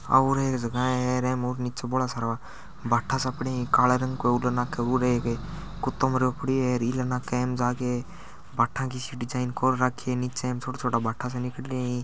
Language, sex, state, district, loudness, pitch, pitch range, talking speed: Marwari, male, Rajasthan, Churu, -27 LUFS, 125 Hz, 125-130 Hz, 195 wpm